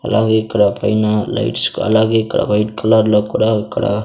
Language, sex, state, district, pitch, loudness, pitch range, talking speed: Telugu, male, Andhra Pradesh, Sri Satya Sai, 110 Hz, -15 LUFS, 105-110 Hz, 160 wpm